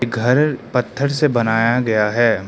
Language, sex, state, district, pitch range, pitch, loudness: Hindi, male, Arunachal Pradesh, Lower Dibang Valley, 115-130 Hz, 120 Hz, -17 LUFS